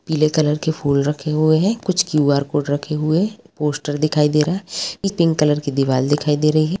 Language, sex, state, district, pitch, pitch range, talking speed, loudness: Hindi, female, Bihar, Bhagalpur, 155 Hz, 145-160 Hz, 230 wpm, -18 LUFS